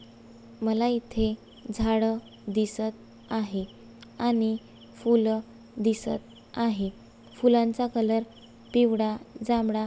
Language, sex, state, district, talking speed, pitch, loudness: Marathi, female, Maharashtra, Sindhudurg, 85 wpm, 220 Hz, -27 LUFS